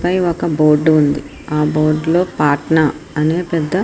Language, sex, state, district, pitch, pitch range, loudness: Telugu, female, Andhra Pradesh, Srikakulam, 155 Hz, 150-170 Hz, -15 LUFS